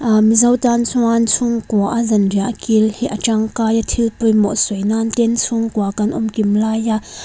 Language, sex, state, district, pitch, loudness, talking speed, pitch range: Mizo, female, Mizoram, Aizawl, 225 Hz, -16 LUFS, 190 wpm, 215-235 Hz